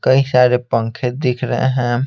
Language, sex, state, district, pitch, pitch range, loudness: Hindi, male, Bihar, Patna, 125 Hz, 120-130 Hz, -16 LUFS